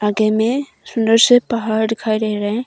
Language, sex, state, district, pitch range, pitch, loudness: Hindi, female, Arunachal Pradesh, Longding, 215-235 Hz, 225 Hz, -16 LUFS